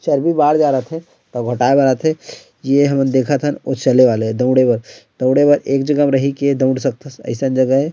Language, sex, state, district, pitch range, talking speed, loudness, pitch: Chhattisgarhi, male, Chhattisgarh, Rajnandgaon, 130-145 Hz, 205 wpm, -15 LUFS, 135 Hz